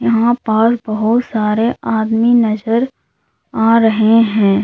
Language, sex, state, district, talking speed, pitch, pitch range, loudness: Hindi, female, Uttar Pradesh, Lalitpur, 115 wpm, 225 Hz, 220-230 Hz, -14 LUFS